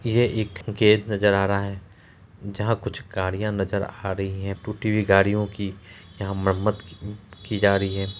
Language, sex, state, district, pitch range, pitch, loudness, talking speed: Hindi, male, Bihar, Araria, 95-105 Hz, 100 Hz, -24 LUFS, 175 wpm